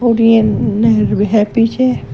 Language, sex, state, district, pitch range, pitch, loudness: Hindi, female, Uttar Pradesh, Shamli, 215-230 Hz, 225 Hz, -12 LUFS